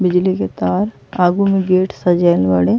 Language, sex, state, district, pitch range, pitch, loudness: Bhojpuri, female, Uttar Pradesh, Ghazipur, 170-190 Hz, 180 Hz, -15 LUFS